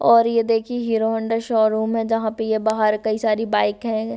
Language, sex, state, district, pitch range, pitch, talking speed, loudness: Hindi, female, Bihar, Sitamarhi, 220-225 Hz, 225 Hz, 215 wpm, -20 LUFS